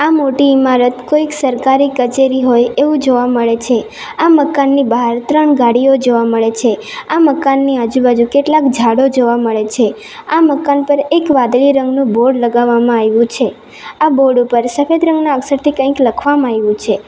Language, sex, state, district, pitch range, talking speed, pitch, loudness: Gujarati, female, Gujarat, Valsad, 240-285 Hz, 165 wpm, 265 Hz, -12 LUFS